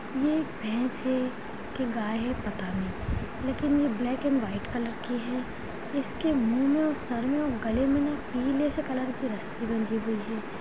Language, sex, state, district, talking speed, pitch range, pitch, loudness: Hindi, female, Chhattisgarh, Sarguja, 165 wpm, 225-275 Hz, 250 Hz, -29 LUFS